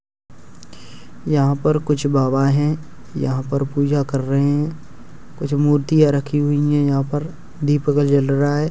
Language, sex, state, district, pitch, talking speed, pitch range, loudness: Hindi, male, Uttar Pradesh, Hamirpur, 145 Hz, 150 wpm, 140-150 Hz, -18 LUFS